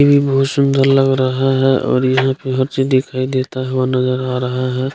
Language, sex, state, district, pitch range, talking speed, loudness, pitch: Hindi, male, Bihar, Jahanabad, 130-135 Hz, 230 wpm, -15 LUFS, 130 Hz